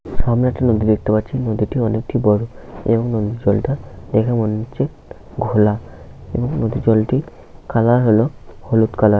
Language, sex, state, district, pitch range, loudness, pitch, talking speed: Bengali, male, West Bengal, Paschim Medinipur, 110-125 Hz, -18 LUFS, 115 Hz, 150 wpm